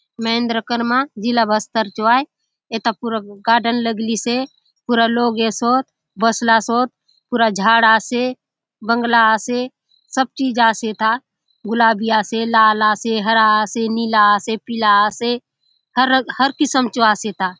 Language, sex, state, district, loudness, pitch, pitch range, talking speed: Halbi, female, Chhattisgarh, Bastar, -17 LUFS, 230 Hz, 220-240 Hz, 145 wpm